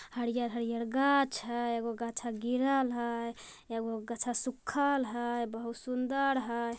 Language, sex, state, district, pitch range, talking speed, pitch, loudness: Magahi, female, Bihar, Jamui, 235-255 Hz, 160 wpm, 240 Hz, -33 LUFS